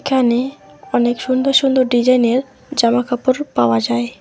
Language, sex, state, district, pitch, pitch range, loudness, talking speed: Bengali, female, West Bengal, Alipurduar, 250 Hz, 240-265 Hz, -16 LUFS, 115 wpm